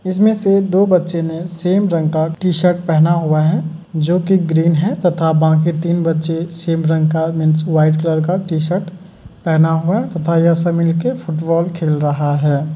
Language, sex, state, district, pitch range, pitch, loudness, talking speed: Hindi, male, Uttar Pradesh, Muzaffarnagar, 160-180 Hz, 165 Hz, -15 LUFS, 195 wpm